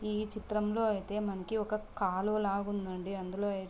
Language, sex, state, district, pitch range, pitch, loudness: Telugu, female, Andhra Pradesh, Guntur, 195-215 Hz, 205 Hz, -35 LUFS